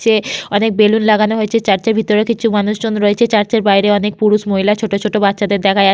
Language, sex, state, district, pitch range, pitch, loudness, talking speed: Bengali, female, West Bengal, Malda, 205-220 Hz, 210 Hz, -14 LUFS, 220 wpm